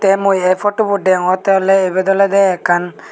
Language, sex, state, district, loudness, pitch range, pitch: Chakma, male, Tripura, Unakoti, -14 LUFS, 185-195 Hz, 195 Hz